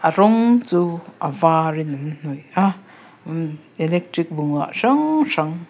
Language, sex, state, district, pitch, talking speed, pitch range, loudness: Mizo, female, Mizoram, Aizawl, 165 Hz, 150 wpm, 155-190 Hz, -20 LUFS